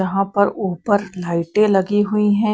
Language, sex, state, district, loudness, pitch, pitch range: Hindi, female, Punjab, Kapurthala, -18 LUFS, 200 Hz, 190-210 Hz